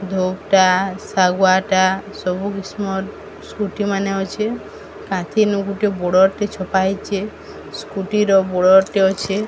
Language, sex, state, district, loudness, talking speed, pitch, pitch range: Odia, female, Odisha, Sambalpur, -18 LUFS, 115 wpm, 195 Hz, 190-200 Hz